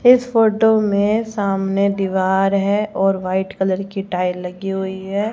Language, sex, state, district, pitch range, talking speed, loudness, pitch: Hindi, male, Haryana, Rohtak, 190-210 Hz, 155 wpm, -18 LUFS, 195 Hz